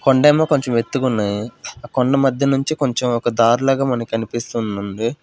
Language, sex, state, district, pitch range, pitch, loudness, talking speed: Telugu, male, Andhra Pradesh, Manyam, 115-135 Hz, 125 Hz, -18 LUFS, 125 wpm